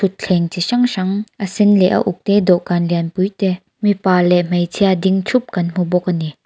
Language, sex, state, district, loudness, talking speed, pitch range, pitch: Mizo, female, Mizoram, Aizawl, -16 LUFS, 225 wpm, 175-200 Hz, 185 Hz